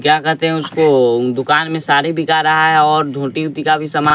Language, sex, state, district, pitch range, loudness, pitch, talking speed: Hindi, male, Bihar, West Champaran, 150-160 Hz, -14 LUFS, 155 Hz, 230 wpm